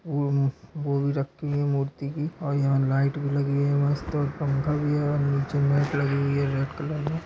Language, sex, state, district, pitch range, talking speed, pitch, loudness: Hindi, male, Chhattisgarh, Korba, 140-145 Hz, 225 wpm, 140 Hz, -26 LUFS